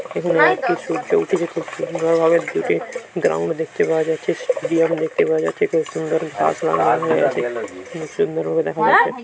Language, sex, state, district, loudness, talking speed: Bengali, male, West Bengal, Jhargram, -19 LUFS, 175 wpm